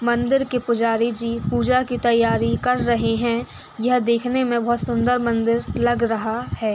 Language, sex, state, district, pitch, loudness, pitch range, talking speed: Hindi, female, Uttar Pradesh, Etah, 235 Hz, -20 LUFS, 230-245 Hz, 170 wpm